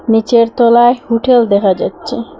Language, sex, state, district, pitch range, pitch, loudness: Bengali, female, Assam, Hailakandi, 225-245 Hz, 235 Hz, -11 LUFS